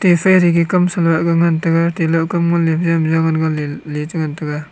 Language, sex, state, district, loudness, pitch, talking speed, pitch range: Wancho, male, Arunachal Pradesh, Longding, -15 LUFS, 165 Hz, 140 wpm, 160-170 Hz